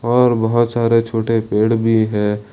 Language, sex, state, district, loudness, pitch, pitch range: Hindi, male, Jharkhand, Ranchi, -16 LUFS, 115 Hz, 110-115 Hz